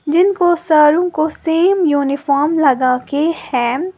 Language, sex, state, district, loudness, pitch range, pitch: Hindi, female, Uttar Pradesh, Lalitpur, -14 LUFS, 280-345 Hz, 310 Hz